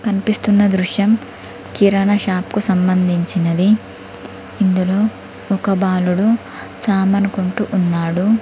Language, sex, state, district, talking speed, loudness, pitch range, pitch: Telugu, female, Telangana, Komaram Bheem, 80 wpm, -16 LUFS, 180-205 Hz, 195 Hz